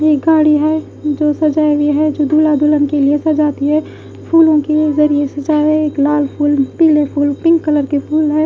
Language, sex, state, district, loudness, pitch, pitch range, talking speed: Hindi, female, Odisha, Khordha, -13 LUFS, 300 Hz, 290-310 Hz, 200 wpm